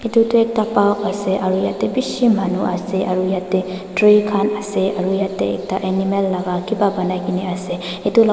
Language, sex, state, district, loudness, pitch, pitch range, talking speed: Nagamese, female, Nagaland, Dimapur, -18 LUFS, 190 Hz, 185-210 Hz, 160 wpm